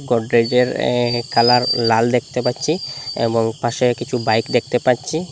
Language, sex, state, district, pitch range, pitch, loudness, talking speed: Bengali, male, Assam, Hailakandi, 115-125 Hz, 120 Hz, -18 LUFS, 135 wpm